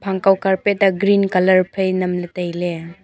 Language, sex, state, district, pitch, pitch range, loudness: Wancho, female, Arunachal Pradesh, Longding, 190 Hz, 180-195 Hz, -17 LUFS